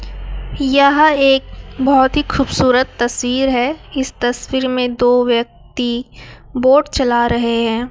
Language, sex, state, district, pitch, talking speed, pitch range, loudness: Hindi, male, Chhattisgarh, Raipur, 255 Hz, 120 wpm, 245-270 Hz, -15 LUFS